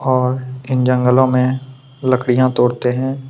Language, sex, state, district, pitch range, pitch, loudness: Hindi, male, Chhattisgarh, Kabirdham, 125-130 Hz, 130 Hz, -16 LUFS